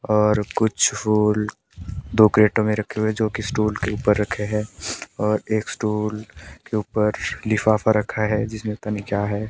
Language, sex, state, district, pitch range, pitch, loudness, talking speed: Hindi, male, Himachal Pradesh, Shimla, 105-110 Hz, 105 Hz, -21 LUFS, 170 wpm